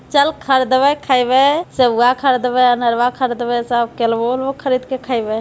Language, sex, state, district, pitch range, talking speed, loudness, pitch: Hindi, female, Bihar, Jamui, 240-265 Hz, 155 wpm, -16 LUFS, 250 Hz